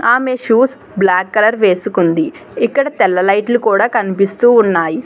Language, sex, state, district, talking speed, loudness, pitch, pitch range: Telugu, female, Telangana, Hyderabad, 130 wpm, -13 LUFS, 215 Hz, 190-240 Hz